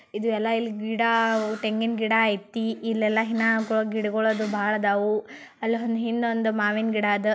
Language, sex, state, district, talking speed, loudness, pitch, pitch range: Kannada, male, Karnataka, Bijapur, 130 wpm, -24 LUFS, 220 Hz, 215-225 Hz